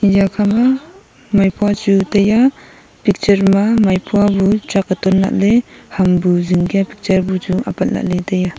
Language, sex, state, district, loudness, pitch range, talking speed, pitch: Wancho, female, Arunachal Pradesh, Longding, -15 LUFS, 185-210 Hz, 140 wpm, 195 Hz